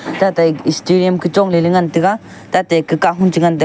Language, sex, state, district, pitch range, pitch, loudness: Wancho, male, Arunachal Pradesh, Longding, 165-185 Hz, 175 Hz, -14 LUFS